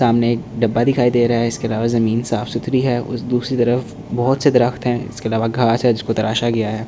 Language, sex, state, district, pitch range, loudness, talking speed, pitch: Hindi, male, Delhi, New Delhi, 115-125 Hz, -18 LUFS, 255 wpm, 120 Hz